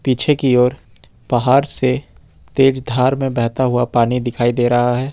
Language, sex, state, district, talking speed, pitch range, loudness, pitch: Hindi, male, Jharkhand, Ranchi, 175 wpm, 120-130 Hz, -16 LUFS, 125 Hz